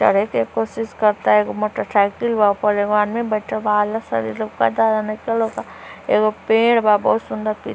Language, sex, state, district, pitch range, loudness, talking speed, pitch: Hindi, female, Uttar Pradesh, Gorakhpur, 200-225 Hz, -19 LUFS, 160 wpm, 215 Hz